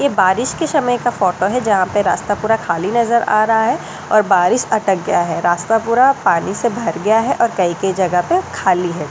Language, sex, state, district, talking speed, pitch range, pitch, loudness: Hindi, female, Delhi, New Delhi, 250 wpm, 185-235 Hz, 215 Hz, -16 LUFS